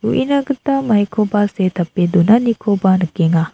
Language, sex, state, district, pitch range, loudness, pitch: Garo, female, Meghalaya, South Garo Hills, 180-225 Hz, -15 LUFS, 205 Hz